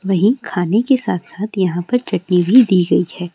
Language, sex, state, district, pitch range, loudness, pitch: Hindi, female, Uttarakhand, Uttarkashi, 180-225 Hz, -16 LUFS, 190 Hz